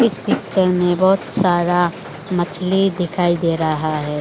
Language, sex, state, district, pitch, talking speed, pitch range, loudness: Hindi, female, Arunachal Pradesh, Lower Dibang Valley, 175 Hz, 140 wpm, 170-190 Hz, -17 LUFS